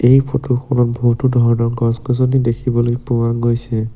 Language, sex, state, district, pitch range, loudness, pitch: Assamese, male, Assam, Sonitpur, 115-125 Hz, -16 LUFS, 120 Hz